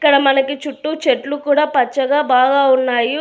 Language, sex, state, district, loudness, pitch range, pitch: Telugu, female, Telangana, Hyderabad, -15 LUFS, 265-290 Hz, 275 Hz